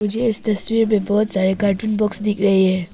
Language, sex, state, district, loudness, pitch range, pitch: Hindi, female, Arunachal Pradesh, Papum Pare, -17 LUFS, 195-215 Hz, 210 Hz